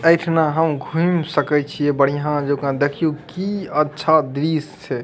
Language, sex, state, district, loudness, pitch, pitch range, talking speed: Maithili, male, Bihar, Madhepura, -19 LUFS, 150 Hz, 145-160 Hz, 145 wpm